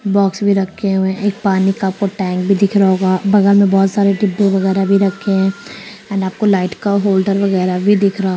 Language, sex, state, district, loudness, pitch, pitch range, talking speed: Hindi, female, Bihar, Sitamarhi, -14 LUFS, 195 Hz, 190-200 Hz, 230 wpm